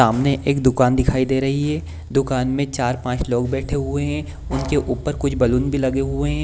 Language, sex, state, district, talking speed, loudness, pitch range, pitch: Hindi, male, Bihar, Kishanganj, 205 wpm, -20 LUFS, 125-140 Hz, 130 Hz